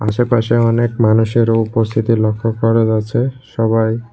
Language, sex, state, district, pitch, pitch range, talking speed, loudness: Bengali, male, Tripura, West Tripura, 115 Hz, 110-115 Hz, 115 wpm, -15 LUFS